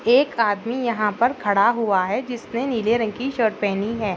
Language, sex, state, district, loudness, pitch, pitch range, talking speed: Hindi, female, Maharashtra, Pune, -21 LUFS, 230 Hz, 205-240 Hz, 200 wpm